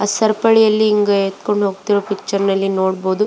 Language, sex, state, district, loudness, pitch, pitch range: Kannada, female, Karnataka, Belgaum, -16 LUFS, 205 Hz, 195-210 Hz